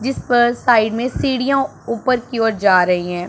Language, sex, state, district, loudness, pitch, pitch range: Hindi, male, Punjab, Pathankot, -17 LUFS, 235 Hz, 205-255 Hz